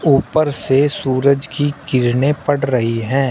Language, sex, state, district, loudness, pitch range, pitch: Hindi, male, Uttar Pradesh, Shamli, -16 LUFS, 130-145 Hz, 140 Hz